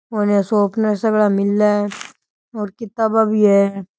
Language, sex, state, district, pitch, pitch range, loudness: Rajasthani, male, Rajasthan, Nagaur, 210 Hz, 200-220 Hz, -17 LUFS